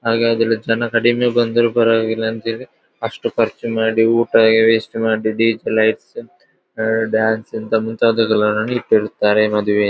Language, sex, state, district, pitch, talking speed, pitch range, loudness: Kannada, male, Karnataka, Dakshina Kannada, 110 Hz, 120 wpm, 110-115 Hz, -16 LUFS